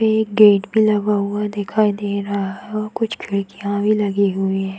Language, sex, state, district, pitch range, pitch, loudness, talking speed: Hindi, female, Bihar, Darbhanga, 200-215 Hz, 205 Hz, -19 LUFS, 210 wpm